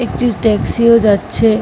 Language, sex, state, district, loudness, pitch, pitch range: Bengali, female, West Bengal, Kolkata, -12 LUFS, 225 Hz, 215-235 Hz